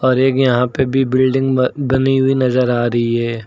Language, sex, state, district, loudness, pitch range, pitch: Hindi, male, Uttar Pradesh, Lucknow, -15 LUFS, 125-135 Hz, 130 Hz